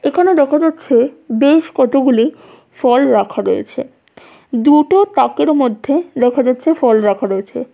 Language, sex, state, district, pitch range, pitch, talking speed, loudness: Bengali, female, West Bengal, Jalpaiguri, 245-310 Hz, 270 Hz, 125 wpm, -13 LUFS